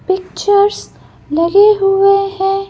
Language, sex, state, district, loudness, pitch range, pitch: Hindi, female, Madhya Pradesh, Bhopal, -12 LUFS, 385-400 Hz, 390 Hz